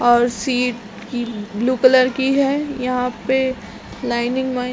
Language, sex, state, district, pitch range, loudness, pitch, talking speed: Hindi, female, Chhattisgarh, Raigarh, 240-260 Hz, -19 LUFS, 250 Hz, 150 wpm